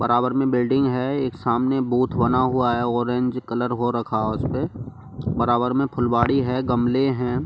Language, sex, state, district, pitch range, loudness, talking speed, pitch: Hindi, male, Delhi, New Delhi, 120-130 Hz, -22 LUFS, 175 wpm, 125 Hz